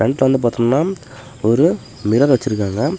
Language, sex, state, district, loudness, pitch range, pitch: Tamil, male, Tamil Nadu, Namakkal, -17 LUFS, 115-140 Hz, 130 Hz